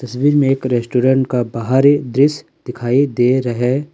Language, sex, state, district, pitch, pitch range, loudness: Hindi, male, Jharkhand, Ranchi, 130 Hz, 125-140 Hz, -15 LUFS